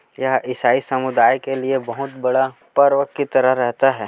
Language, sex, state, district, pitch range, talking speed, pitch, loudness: Hindi, male, Chhattisgarh, Korba, 125-135 Hz, 175 wpm, 130 Hz, -18 LUFS